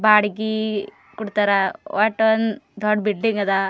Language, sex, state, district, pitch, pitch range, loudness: Kannada, female, Karnataka, Gulbarga, 210 Hz, 205-220 Hz, -20 LUFS